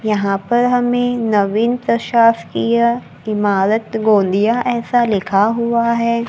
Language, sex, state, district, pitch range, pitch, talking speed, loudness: Hindi, female, Maharashtra, Gondia, 205-235 Hz, 230 Hz, 115 wpm, -16 LUFS